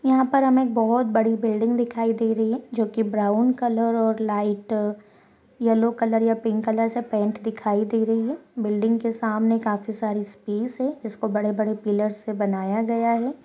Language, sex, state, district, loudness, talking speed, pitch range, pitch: Hindi, female, Chhattisgarh, Rajnandgaon, -23 LUFS, 185 wpm, 215-230 Hz, 225 Hz